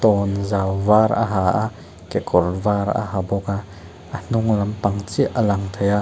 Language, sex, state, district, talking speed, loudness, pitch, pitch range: Mizo, male, Mizoram, Aizawl, 180 wpm, -20 LUFS, 100 Hz, 95-105 Hz